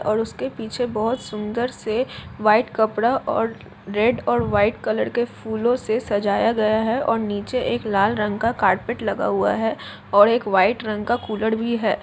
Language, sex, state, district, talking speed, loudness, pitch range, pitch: Hindi, female, Jharkhand, Jamtara, 190 wpm, -21 LUFS, 210-235 Hz, 220 Hz